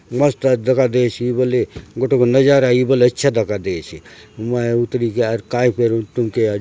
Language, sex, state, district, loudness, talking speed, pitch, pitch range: Halbi, male, Chhattisgarh, Bastar, -17 LUFS, 165 wpm, 125 Hz, 115-130 Hz